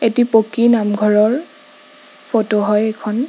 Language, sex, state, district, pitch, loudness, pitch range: Assamese, female, Assam, Sonitpur, 220 Hz, -15 LUFS, 210-235 Hz